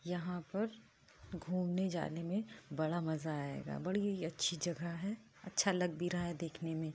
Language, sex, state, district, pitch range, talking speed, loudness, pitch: Hindi, female, Uttar Pradesh, Budaun, 165-185 Hz, 170 wpm, -39 LUFS, 175 Hz